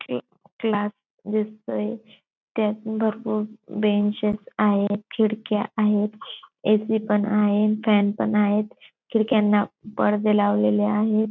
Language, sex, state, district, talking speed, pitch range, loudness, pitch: Marathi, female, Maharashtra, Dhule, 105 wpm, 205-215 Hz, -23 LUFS, 210 Hz